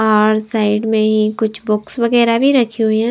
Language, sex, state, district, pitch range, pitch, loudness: Hindi, female, Himachal Pradesh, Shimla, 215-230 Hz, 220 Hz, -15 LUFS